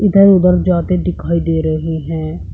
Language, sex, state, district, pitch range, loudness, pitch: Hindi, male, Uttar Pradesh, Shamli, 160-180 Hz, -14 LUFS, 170 Hz